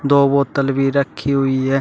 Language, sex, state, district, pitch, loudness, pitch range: Hindi, male, Uttar Pradesh, Shamli, 140 Hz, -17 LUFS, 135-140 Hz